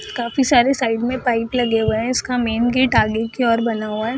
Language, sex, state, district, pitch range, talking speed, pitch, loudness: Hindi, female, Bihar, Jahanabad, 225-255 Hz, 245 wpm, 235 Hz, -18 LUFS